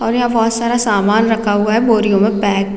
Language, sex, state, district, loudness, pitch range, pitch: Hindi, female, Chhattisgarh, Raigarh, -14 LUFS, 205-230 Hz, 215 Hz